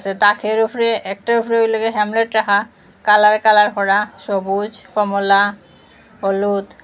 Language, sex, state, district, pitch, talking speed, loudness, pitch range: Bengali, female, Assam, Hailakandi, 210 Hz, 125 wpm, -16 LUFS, 200-220 Hz